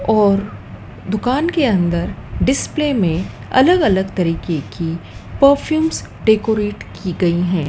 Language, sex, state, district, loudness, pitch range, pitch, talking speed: Hindi, female, Madhya Pradesh, Dhar, -17 LUFS, 170-260 Hz, 195 Hz, 115 wpm